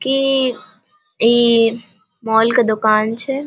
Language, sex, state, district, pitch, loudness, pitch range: Maithili, female, Bihar, Vaishali, 230 Hz, -15 LUFS, 220-265 Hz